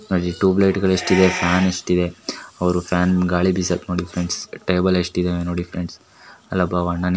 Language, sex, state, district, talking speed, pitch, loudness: Kannada, female, Karnataka, Mysore, 110 wpm, 90 Hz, -20 LUFS